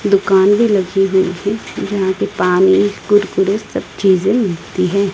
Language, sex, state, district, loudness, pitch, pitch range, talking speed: Hindi, female, Odisha, Malkangiri, -15 LUFS, 195 Hz, 185-200 Hz, 150 wpm